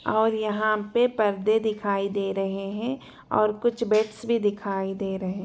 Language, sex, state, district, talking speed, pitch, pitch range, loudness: Hindi, female, Chhattisgarh, Jashpur, 165 wpm, 215 Hz, 195-220 Hz, -25 LUFS